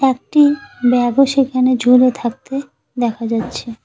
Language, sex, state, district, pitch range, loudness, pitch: Bengali, female, West Bengal, Cooch Behar, 240-270 Hz, -15 LUFS, 250 Hz